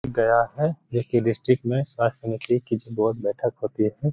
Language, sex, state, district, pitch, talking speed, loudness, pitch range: Hindi, male, Bihar, Gaya, 120 Hz, 175 wpm, -24 LUFS, 115-130 Hz